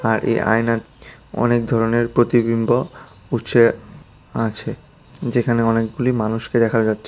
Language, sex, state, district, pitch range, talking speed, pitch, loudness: Bengali, male, Tripura, West Tripura, 115-120 Hz, 110 wpm, 115 Hz, -19 LUFS